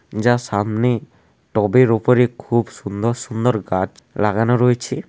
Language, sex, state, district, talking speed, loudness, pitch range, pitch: Bengali, male, West Bengal, Dakshin Dinajpur, 120 wpm, -18 LUFS, 105-125 Hz, 115 Hz